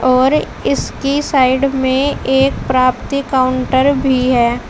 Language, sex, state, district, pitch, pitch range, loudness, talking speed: Hindi, female, Uttar Pradesh, Saharanpur, 260 Hz, 255-275 Hz, -14 LUFS, 115 wpm